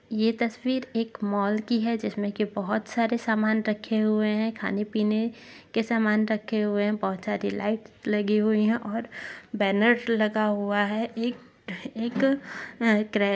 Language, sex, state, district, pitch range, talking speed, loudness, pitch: Hindi, female, Maharashtra, Dhule, 210-230 Hz, 165 wpm, -26 LUFS, 215 Hz